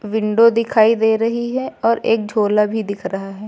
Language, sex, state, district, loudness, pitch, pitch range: Hindi, female, Uttar Pradesh, Lucknow, -17 LUFS, 220 Hz, 210-230 Hz